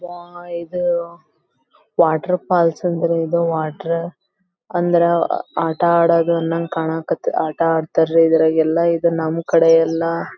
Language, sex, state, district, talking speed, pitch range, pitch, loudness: Kannada, female, Karnataka, Belgaum, 110 wpm, 165-170 Hz, 170 Hz, -18 LUFS